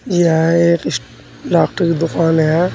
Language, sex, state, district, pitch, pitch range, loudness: Hindi, male, Uttar Pradesh, Saharanpur, 165 Hz, 160-170 Hz, -15 LUFS